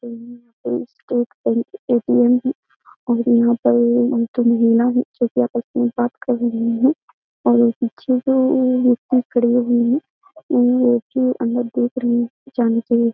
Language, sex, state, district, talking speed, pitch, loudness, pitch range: Hindi, female, Uttar Pradesh, Jyotiba Phule Nagar, 150 wpm, 245 Hz, -18 LUFS, 235-255 Hz